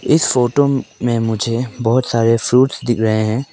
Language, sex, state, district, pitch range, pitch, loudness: Hindi, male, Arunachal Pradesh, Papum Pare, 115-130 Hz, 120 Hz, -16 LUFS